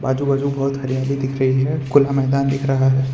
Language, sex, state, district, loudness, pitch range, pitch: Hindi, male, Gujarat, Valsad, -19 LUFS, 130-140 Hz, 135 Hz